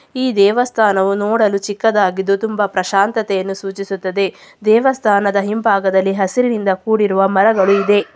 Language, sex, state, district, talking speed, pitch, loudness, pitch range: Kannada, female, Karnataka, Chamarajanagar, 95 wpm, 200 Hz, -15 LUFS, 195-220 Hz